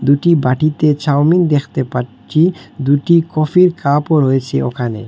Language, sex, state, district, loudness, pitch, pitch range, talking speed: Bengali, male, Assam, Hailakandi, -14 LUFS, 145 Hz, 130-160 Hz, 120 wpm